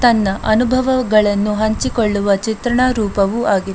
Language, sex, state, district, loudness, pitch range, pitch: Kannada, female, Karnataka, Dakshina Kannada, -16 LUFS, 205-240 Hz, 220 Hz